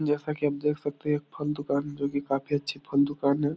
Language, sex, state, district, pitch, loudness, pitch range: Hindi, male, Bihar, Supaul, 145 Hz, -29 LUFS, 140-150 Hz